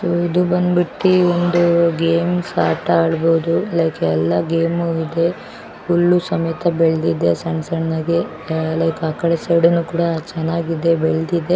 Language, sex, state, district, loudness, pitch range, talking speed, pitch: Kannada, female, Karnataka, Shimoga, -17 LUFS, 160-175 Hz, 125 wpm, 165 Hz